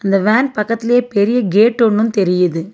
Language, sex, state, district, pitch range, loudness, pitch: Tamil, female, Tamil Nadu, Nilgiris, 195-230 Hz, -14 LUFS, 215 Hz